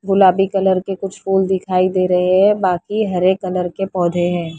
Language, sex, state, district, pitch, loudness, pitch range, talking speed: Hindi, female, Maharashtra, Mumbai Suburban, 185 Hz, -16 LUFS, 180-195 Hz, 195 wpm